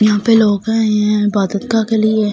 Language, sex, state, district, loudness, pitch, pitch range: Hindi, female, Delhi, New Delhi, -14 LUFS, 215 Hz, 210-220 Hz